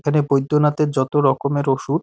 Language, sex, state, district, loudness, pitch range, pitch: Bengali, male, West Bengal, Dakshin Dinajpur, -18 LUFS, 135-150 Hz, 145 Hz